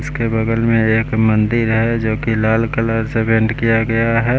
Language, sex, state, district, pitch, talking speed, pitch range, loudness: Hindi, male, Bihar, West Champaran, 115 Hz, 205 wpm, 110-115 Hz, -16 LUFS